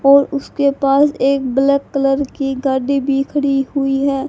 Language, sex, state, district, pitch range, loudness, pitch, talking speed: Hindi, female, Haryana, Charkhi Dadri, 270-280 Hz, -16 LUFS, 275 Hz, 165 wpm